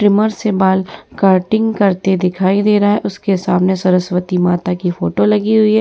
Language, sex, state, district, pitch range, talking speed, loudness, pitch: Hindi, female, Bihar, Vaishali, 180-205 Hz, 175 wpm, -14 LUFS, 190 Hz